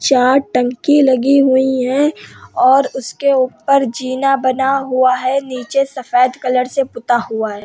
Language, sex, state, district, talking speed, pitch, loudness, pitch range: Hindi, female, Uttar Pradesh, Hamirpur, 150 wpm, 260 Hz, -15 LUFS, 250-275 Hz